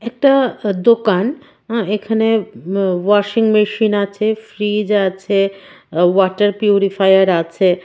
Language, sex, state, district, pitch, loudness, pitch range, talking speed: Bengali, female, Tripura, West Tripura, 205 Hz, -15 LUFS, 195-220 Hz, 85 wpm